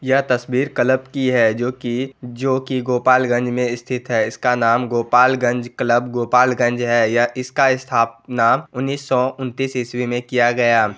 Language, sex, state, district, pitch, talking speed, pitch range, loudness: Hindi, male, Bihar, Gopalganj, 125 Hz, 140 wpm, 120-130 Hz, -18 LUFS